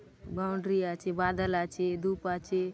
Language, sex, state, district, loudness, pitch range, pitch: Halbi, female, Chhattisgarh, Bastar, -32 LUFS, 180-190 Hz, 185 Hz